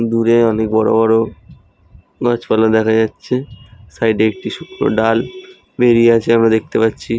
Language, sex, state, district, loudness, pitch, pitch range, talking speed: Bengali, male, West Bengal, Jhargram, -15 LUFS, 115 Hz, 110-115 Hz, 160 wpm